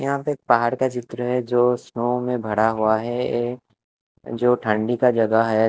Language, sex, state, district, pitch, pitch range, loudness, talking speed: Hindi, male, Chhattisgarh, Raipur, 120 Hz, 110-125 Hz, -21 LUFS, 190 wpm